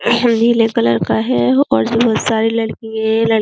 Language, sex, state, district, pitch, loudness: Hindi, female, Uttar Pradesh, Jyotiba Phule Nagar, 220 Hz, -14 LUFS